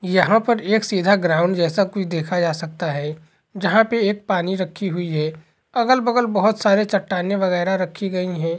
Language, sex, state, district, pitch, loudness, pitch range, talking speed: Hindi, male, Bihar, Purnia, 190 Hz, -20 LUFS, 170-205 Hz, 175 wpm